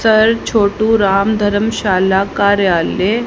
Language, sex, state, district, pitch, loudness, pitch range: Hindi, female, Haryana, Rohtak, 205 Hz, -13 LUFS, 195-220 Hz